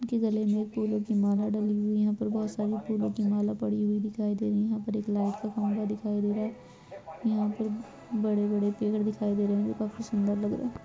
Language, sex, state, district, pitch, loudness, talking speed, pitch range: Hindi, female, Chhattisgarh, Bastar, 210 Hz, -29 LUFS, 255 wpm, 205-215 Hz